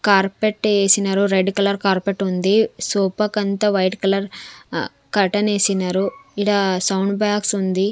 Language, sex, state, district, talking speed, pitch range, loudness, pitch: Telugu, female, Andhra Pradesh, Sri Satya Sai, 130 wpm, 195-205 Hz, -19 LUFS, 200 Hz